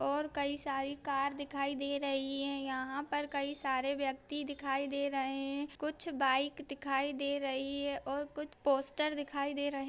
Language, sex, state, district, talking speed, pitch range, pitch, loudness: Hindi, female, Bihar, Purnia, 190 wpm, 275-285 Hz, 280 Hz, -36 LUFS